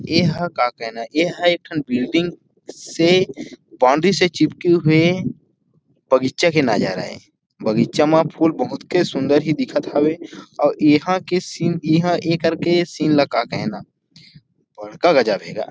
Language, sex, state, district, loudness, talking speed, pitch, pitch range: Chhattisgarhi, male, Chhattisgarh, Rajnandgaon, -18 LUFS, 160 wpm, 165 Hz, 145-175 Hz